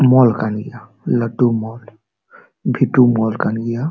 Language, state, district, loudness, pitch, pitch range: Santali, Jharkhand, Sahebganj, -17 LUFS, 120 Hz, 110-125 Hz